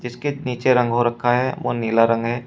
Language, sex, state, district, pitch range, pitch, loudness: Hindi, male, Uttar Pradesh, Shamli, 120-125 Hz, 120 Hz, -20 LUFS